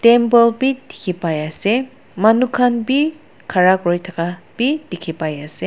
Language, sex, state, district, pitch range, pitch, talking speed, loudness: Nagamese, female, Nagaland, Dimapur, 175-250 Hz, 220 Hz, 160 wpm, -17 LUFS